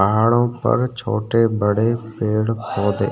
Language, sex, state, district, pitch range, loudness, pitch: Hindi, male, Uttarakhand, Tehri Garhwal, 105-115 Hz, -19 LUFS, 115 Hz